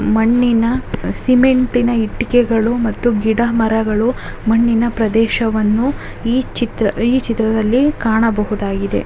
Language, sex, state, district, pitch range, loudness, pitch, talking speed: Kannada, male, Karnataka, Shimoga, 220-240 Hz, -15 LUFS, 230 Hz, 100 wpm